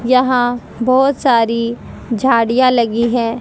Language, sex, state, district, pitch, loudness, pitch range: Hindi, female, Haryana, Jhajjar, 245 Hz, -14 LUFS, 230-255 Hz